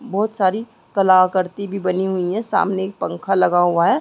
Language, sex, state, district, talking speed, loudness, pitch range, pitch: Hindi, female, Uttar Pradesh, Muzaffarnagar, 195 wpm, -19 LUFS, 185-200 Hz, 190 Hz